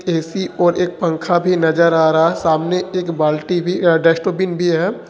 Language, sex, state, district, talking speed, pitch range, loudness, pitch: Hindi, male, Jharkhand, Ranchi, 190 wpm, 165-180 Hz, -16 LUFS, 175 Hz